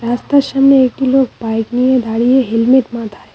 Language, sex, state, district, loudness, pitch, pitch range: Bengali, female, West Bengal, Cooch Behar, -13 LUFS, 250 Hz, 230-265 Hz